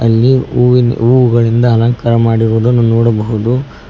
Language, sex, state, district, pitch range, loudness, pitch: Kannada, male, Karnataka, Koppal, 115-125 Hz, -11 LUFS, 115 Hz